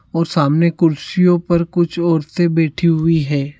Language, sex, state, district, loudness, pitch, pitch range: Hindi, male, Rajasthan, Nagaur, -16 LUFS, 165 Hz, 160-170 Hz